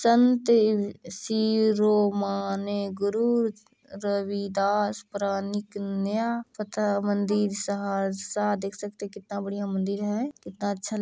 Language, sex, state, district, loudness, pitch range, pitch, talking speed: Maithili, female, Bihar, Saharsa, -27 LUFS, 200-215 Hz, 205 Hz, 100 wpm